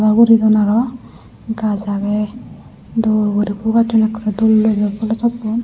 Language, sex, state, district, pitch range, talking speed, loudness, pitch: Chakma, female, Tripura, Unakoti, 210-225 Hz, 160 wpm, -16 LUFS, 220 Hz